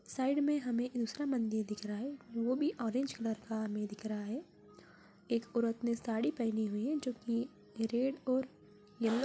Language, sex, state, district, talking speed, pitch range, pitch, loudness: Hindi, female, Bihar, Jamui, 190 wpm, 220-260 Hz, 235 Hz, -37 LUFS